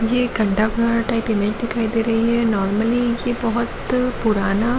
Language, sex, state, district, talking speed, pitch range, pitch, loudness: Hindi, female, Jharkhand, Jamtara, 175 wpm, 220-235 Hz, 230 Hz, -19 LUFS